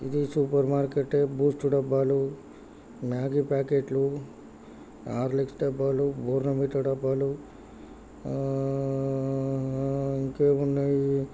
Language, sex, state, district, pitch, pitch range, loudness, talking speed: Telugu, male, Andhra Pradesh, Chittoor, 135 Hz, 135-140 Hz, -27 LUFS, 65 wpm